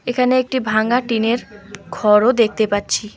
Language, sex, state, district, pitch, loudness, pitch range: Bengali, female, West Bengal, Alipurduar, 220 Hz, -17 LUFS, 205-245 Hz